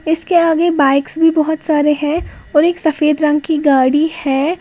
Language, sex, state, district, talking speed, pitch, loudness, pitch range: Hindi, female, Uttar Pradesh, Lalitpur, 180 wpm, 310 Hz, -14 LUFS, 295-325 Hz